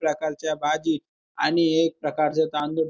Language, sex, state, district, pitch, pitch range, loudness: Marathi, male, Maharashtra, Pune, 155 Hz, 150-160 Hz, -24 LUFS